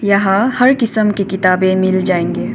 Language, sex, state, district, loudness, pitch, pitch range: Hindi, female, Arunachal Pradesh, Papum Pare, -13 LUFS, 195 Hz, 185-215 Hz